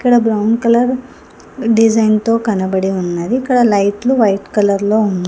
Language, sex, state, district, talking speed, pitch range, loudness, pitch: Telugu, female, Telangana, Hyderabad, 135 wpm, 200-235 Hz, -14 LUFS, 220 Hz